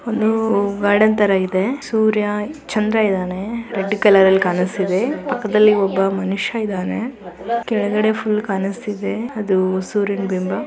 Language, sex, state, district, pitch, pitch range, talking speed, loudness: Kannada, female, Karnataka, Dharwad, 205 Hz, 190-220 Hz, 110 wpm, -18 LUFS